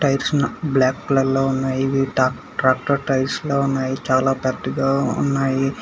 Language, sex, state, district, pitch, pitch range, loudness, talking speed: Telugu, male, Telangana, Hyderabad, 135 Hz, 130-135 Hz, -20 LUFS, 125 wpm